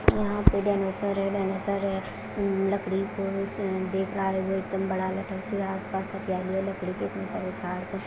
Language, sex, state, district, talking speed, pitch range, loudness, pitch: Hindi, female, Punjab, Fazilka, 185 wpm, 190-195 Hz, -29 LUFS, 195 Hz